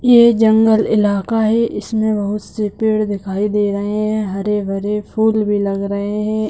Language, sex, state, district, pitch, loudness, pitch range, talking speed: Hindi, male, Bihar, Purnia, 210 Hz, -16 LUFS, 205-220 Hz, 165 wpm